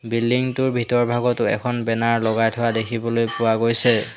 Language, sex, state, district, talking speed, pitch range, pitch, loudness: Assamese, male, Assam, Hailakandi, 145 wpm, 115-120 Hz, 115 Hz, -20 LUFS